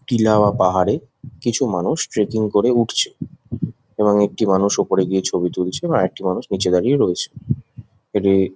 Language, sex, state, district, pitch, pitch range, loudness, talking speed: Bengali, male, West Bengal, Jhargram, 105 Hz, 95-120 Hz, -19 LUFS, 160 wpm